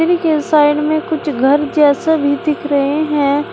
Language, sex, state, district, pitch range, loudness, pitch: Hindi, female, Uttar Pradesh, Shamli, 285-310 Hz, -14 LUFS, 300 Hz